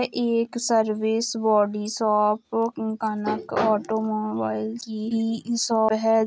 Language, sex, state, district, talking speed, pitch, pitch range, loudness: Hindi, female, Uttar Pradesh, Jalaun, 85 wpm, 220 Hz, 215-230 Hz, -24 LUFS